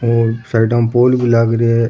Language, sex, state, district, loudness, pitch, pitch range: Rajasthani, male, Rajasthan, Churu, -14 LUFS, 115 Hz, 115-120 Hz